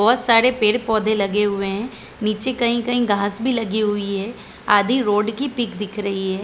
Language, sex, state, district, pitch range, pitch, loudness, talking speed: Hindi, female, Chhattisgarh, Bilaspur, 205-235 Hz, 215 Hz, -19 LUFS, 185 wpm